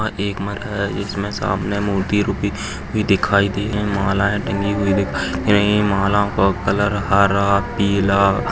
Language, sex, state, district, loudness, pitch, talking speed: Hindi, male, Maharashtra, Chandrapur, -18 LUFS, 100 Hz, 160 wpm